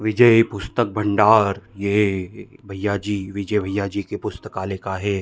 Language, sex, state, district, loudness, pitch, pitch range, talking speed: Hindi, male, Chhattisgarh, Bilaspur, -20 LUFS, 100 Hz, 100-105 Hz, 150 wpm